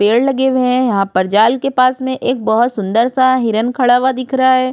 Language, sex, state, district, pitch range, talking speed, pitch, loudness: Hindi, female, Uttar Pradesh, Budaun, 225-260 Hz, 255 wpm, 255 Hz, -14 LUFS